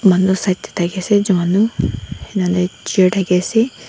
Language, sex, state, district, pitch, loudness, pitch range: Nagamese, female, Nagaland, Dimapur, 190 Hz, -16 LUFS, 180-205 Hz